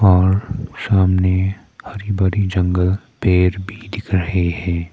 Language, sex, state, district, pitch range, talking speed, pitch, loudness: Hindi, male, Arunachal Pradesh, Papum Pare, 90-100 Hz, 135 wpm, 95 Hz, -18 LUFS